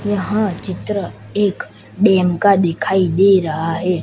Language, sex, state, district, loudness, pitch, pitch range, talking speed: Hindi, male, Gujarat, Gandhinagar, -16 LUFS, 190 Hz, 180-205 Hz, 135 wpm